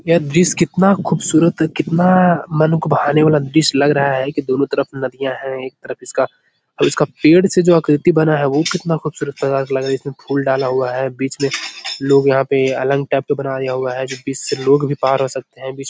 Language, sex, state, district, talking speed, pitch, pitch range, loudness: Hindi, male, Bihar, Jahanabad, 240 wpm, 140 Hz, 135-160 Hz, -16 LUFS